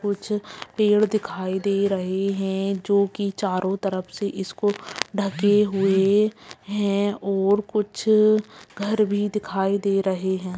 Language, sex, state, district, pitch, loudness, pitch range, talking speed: Hindi, female, Bihar, Purnia, 200 Hz, -23 LUFS, 195-210 Hz, 130 wpm